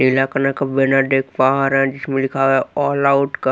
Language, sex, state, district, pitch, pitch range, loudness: Hindi, male, Bihar, Katihar, 135 Hz, 135-140 Hz, -17 LUFS